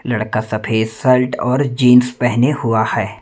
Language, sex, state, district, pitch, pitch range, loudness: Hindi, male, Madhya Pradesh, Umaria, 120 Hz, 110-125 Hz, -15 LUFS